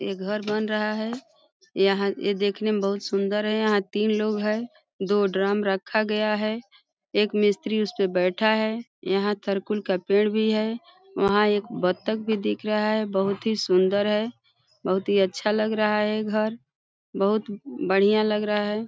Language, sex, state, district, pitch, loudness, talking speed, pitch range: Hindi, female, Uttar Pradesh, Deoria, 210 Hz, -24 LUFS, 175 wpm, 200-215 Hz